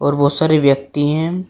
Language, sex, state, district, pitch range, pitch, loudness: Hindi, male, Uttar Pradesh, Shamli, 140-160 Hz, 145 Hz, -15 LUFS